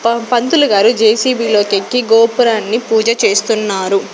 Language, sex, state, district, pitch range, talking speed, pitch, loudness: Telugu, female, Andhra Pradesh, Sri Satya Sai, 210-235 Hz, 100 wpm, 225 Hz, -12 LUFS